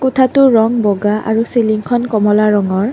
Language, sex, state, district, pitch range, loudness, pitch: Assamese, female, Assam, Kamrup Metropolitan, 210-240 Hz, -13 LUFS, 220 Hz